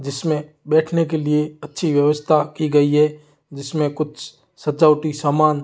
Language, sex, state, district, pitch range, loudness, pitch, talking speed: Hindi, male, Rajasthan, Jaisalmer, 150-155 Hz, -19 LUFS, 150 Hz, 140 wpm